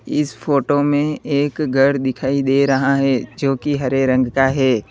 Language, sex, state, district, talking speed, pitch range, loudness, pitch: Hindi, male, Uttar Pradesh, Lalitpur, 185 wpm, 135-145 Hz, -17 LUFS, 135 Hz